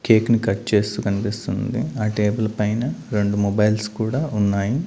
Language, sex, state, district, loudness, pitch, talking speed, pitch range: Telugu, male, Andhra Pradesh, Manyam, -21 LUFS, 105 Hz, 150 wpm, 105-115 Hz